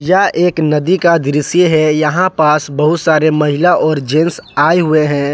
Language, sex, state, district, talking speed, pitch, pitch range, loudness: Hindi, male, Jharkhand, Palamu, 180 wpm, 155 Hz, 150-170 Hz, -12 LUFS